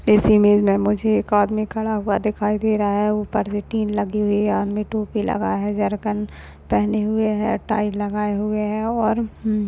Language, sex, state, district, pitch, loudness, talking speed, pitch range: Hindi, male, Maharashtra, Nagpur, 210 Hz, -20 LUFS, 160 wpm, 205-215 Hz